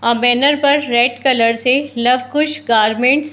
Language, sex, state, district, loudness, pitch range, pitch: Hindi, female, Uttar Pradesh, Muzaffarnagar, -14 LUFS, 240-285 Hz, 250 Hz